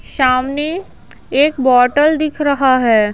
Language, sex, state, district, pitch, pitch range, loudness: Hindi, female, Bihar, Patna, 275 Hz, 255-300 Hz, -14 LUFS